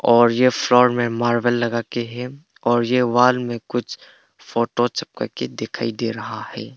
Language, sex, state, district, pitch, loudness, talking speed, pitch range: Hindi, male, Arunachal Pradesh, Papum Pare, 120 Hz, -20 LUFS, 160 wpm, 115-125 Hz